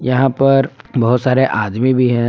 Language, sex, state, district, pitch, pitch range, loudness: Hindi, male, Jharkhand, Palamu, 125 Hz, 120-130 Hz, -15 LUFS